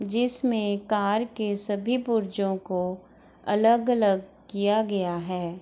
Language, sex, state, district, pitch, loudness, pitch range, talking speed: Hindi, female, Bihar, East Champaran, 205 Hz, -26 LUFS, 195-225 Hz, 105 wpm